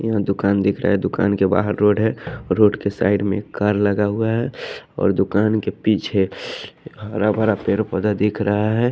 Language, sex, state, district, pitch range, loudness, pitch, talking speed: Hindi, male, Haryana, Jhajjar, 100-110 Hz, -19 LUFS, 105 Hz, 210 wpm